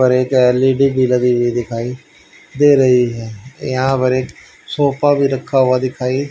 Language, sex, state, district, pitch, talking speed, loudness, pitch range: Hindi, male, Haryana, Charkhi Dadri, 130 Hz, 170 wpm, -15 LUFS, 125-135 Hz